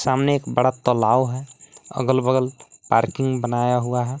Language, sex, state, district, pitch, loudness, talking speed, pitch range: Hindi, male, Jharkhand, Palamu, 130 Hz, -21 LUFS, 155 wpm, 125-130 Hz